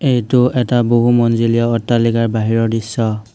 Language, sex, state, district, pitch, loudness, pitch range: Assamese, male, Assam, Hailakandi, 115 Hz, -15 LUFS, 115-120 Hz